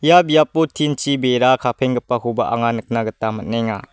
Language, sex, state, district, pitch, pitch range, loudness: Garo, male, Meghalaya, West Garo Hills, 125 Hz, 115-145 Hz, -18 LUFS